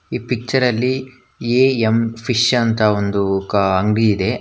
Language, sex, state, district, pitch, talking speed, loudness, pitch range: Kannada, male, Karnataka, Bangalore, 115 Hz, 120 wpm, -17 LUFS, 105-125 Hz